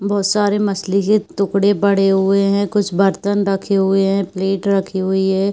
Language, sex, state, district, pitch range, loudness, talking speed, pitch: Hindi, female, Uttar Pradesh, Varanasi, 195-200 Hz, -16 LUFS, 185 wpm, 195 Hz